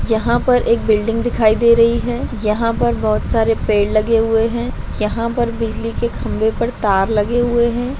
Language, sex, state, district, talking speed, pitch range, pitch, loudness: Hindi, female, Bihar, Madhepura, 195 wpm, 210-235 Hz, 225 Hz, -16 LUFS